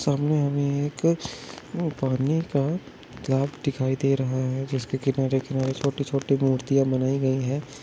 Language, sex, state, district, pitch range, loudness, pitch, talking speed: Hindi, male, Chhattisgarh, Bilaspur, 130-145 Hz, -25 LUFS, 135 Hz, 160 wpm